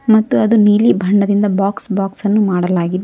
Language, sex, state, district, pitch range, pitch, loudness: Kannada, female, Karnataka, Koppal, 195-215 Hz, 200 Hz, -14 LUFS